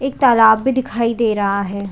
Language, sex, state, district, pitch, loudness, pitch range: Hindi, female, Chhattisgarh, Bilaspur, 230 Hz, -15 LUFS, 200-255 Hz